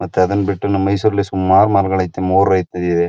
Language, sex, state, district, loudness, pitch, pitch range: Kannada, male, Karnataka, Mysore, -15 LUFS, 95 Hz, 95-100 Hz